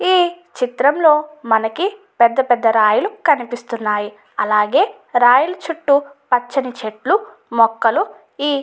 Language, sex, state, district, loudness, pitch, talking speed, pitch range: Telugu, female, Andhra Pradesh, Guntur, -17 LUFS, 270 Hz, 105 wpm, 230-315 Hz